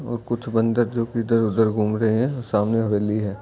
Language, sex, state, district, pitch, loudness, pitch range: Hindi, male, Bihar, Lakhisarai, 115 Hz, -22 LUFS, 105-120 Hz